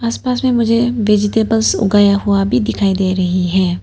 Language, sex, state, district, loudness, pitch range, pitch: Hindi, female, Arunachal Pradesh, Papum Pare, -14 LUFS, 190-230 Hz, 205 Hz